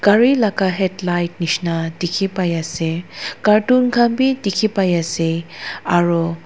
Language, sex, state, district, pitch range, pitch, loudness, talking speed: Nagamese, female, Nagaland, Dimapur, 170-210 Hz, 180 Hz, -18 LUFS, 130 wpm